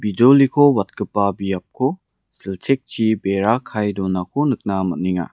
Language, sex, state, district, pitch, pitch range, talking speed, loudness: Garo, male, Meghalaya, West Garo Hills, 105 Hz, 95-130 Hz, 100 wpm, -19 LUFS